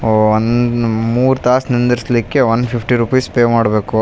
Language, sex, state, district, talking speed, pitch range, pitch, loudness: Kannada, male, Karnataka, Raichur, 180 wpm, 115-125 Hz, 120 Hz, -14 LUFS